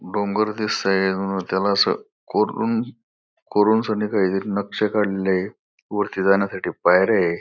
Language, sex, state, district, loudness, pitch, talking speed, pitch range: Marathi, male, Maharashtra, Aurangabad, -21 LUFS, 100 Hz, 120 wpm, 95-105 Hz